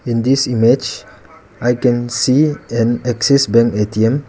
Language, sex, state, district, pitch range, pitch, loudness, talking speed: English, male, Arunachal Pradesh, Lower Dibang Valley, 115-130 Hz, 120 Hz, -15 LUFS, 140 wpm